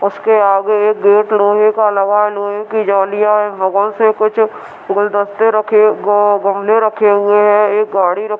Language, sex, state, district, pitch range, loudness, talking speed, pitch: Hindi, female, Uttar Pradesh, Deoria, 200-215 Hz, -12 LUFS, 185 wpm, 210 Hz